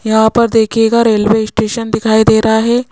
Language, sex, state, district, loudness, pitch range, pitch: Hindi, female, Rajasthan, Jaipur, -11 LUFS, 220-230 Hz, 220 Hz